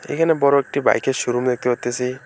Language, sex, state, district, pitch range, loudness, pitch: Bengali, male, West Bengal, Alipurduar, 125-140 Hz, -19 LUFS, 125 Hz